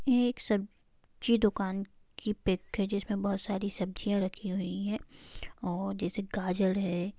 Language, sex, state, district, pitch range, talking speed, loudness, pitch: Hindi, female, Bihar, Sitamarhi, 190-210 Hz, 150 wpm, -32 LUFS, 200 Hz